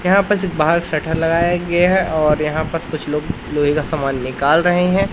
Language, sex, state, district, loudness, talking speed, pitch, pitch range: Hindi, male, Madhya Pradesh, Katni, -17 LUFS, 220 wpm, 160 Hz, 150-175 Hz